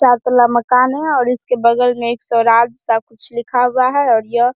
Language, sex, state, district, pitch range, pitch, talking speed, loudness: Hindi, female, Bihar, Saharsa, 235-250 Hz, 245 Hz, 225 wpm, -14 LUFS